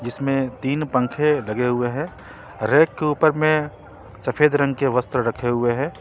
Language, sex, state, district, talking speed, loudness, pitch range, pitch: Hindi, male, Jharkhand, Ranchi, 170 wpm, -21 LUFS, 120-150 Hz, 135 Hz